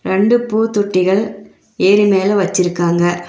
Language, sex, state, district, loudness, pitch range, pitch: Tamil, female, Tamil Nadu, Nilgiris, -14 LUFS, 185-205 Hz, 195 Hz